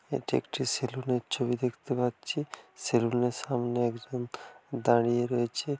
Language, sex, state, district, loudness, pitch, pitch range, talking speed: Bengali, male, West Bengal, Dakshin Dinajpur, -30 LUFS, 125 Hz, 120-130 Hz, 135 wpm